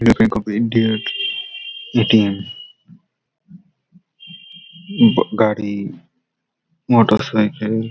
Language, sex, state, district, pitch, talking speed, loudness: Bengali, male, West Bengal, Malda, 115 Hz, 85 wpm, -17 LUFS